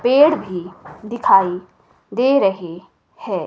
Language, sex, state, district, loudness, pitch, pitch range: Hindi, female, Himachal Pradesh, Shimla, -17 LUFS, 195 Hz, 180-250 Hz